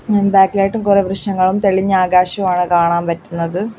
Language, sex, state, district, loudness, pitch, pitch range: Malayalam, female, Kerala, Kollam, -15 LUFS, 190 Hz, 180-200 Hz